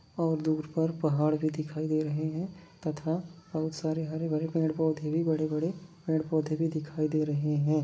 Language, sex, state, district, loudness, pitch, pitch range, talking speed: Hindi, male, Bihar, Lakhisarai, -31 LUFS, 155 Hz, 155-160 Hz, 200 wpm